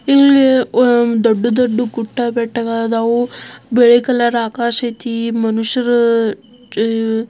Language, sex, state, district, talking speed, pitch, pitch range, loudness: Kannada, female, Karnataka, Belgaum, 100 wpm, 235 Hz, 230-245 Hz, -14 LUFS